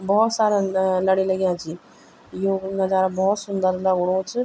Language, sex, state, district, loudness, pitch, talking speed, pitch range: Garhwali, female, Uttarakhand, Tehri Garhwal, -21 LUFS, 190 Hz, 160 wpm, 185-200 Hz